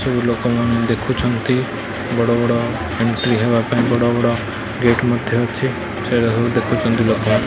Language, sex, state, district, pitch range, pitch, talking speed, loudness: Odia, male, Odisha, Malkangiri, 115-120 Hz, 120 Hz, 135 wpm, -18 LUFS